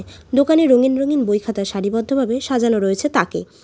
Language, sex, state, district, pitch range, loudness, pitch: Bengali, female, West Bengal, Alipurduar, 215-275 Hz, -18 LUFS, 250 Hz